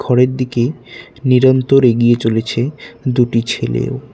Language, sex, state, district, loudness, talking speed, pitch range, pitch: Bengali, male, West Bengal, Cooch Behar, -15 LUFS, 100 wpm, 120-130 Hz, 125 Hz